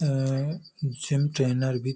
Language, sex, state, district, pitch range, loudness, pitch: Hindi, male, Uttar Pradesh, Hamirpur, 130-145 Hz, -27 LUFS, 135 Hz